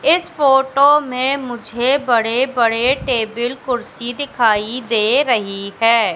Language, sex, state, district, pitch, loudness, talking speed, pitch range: Hindi, female, Madhya Pradesh, Katni, 245 Hz, -16 LUFS, 115 wpm, 230-270 Hz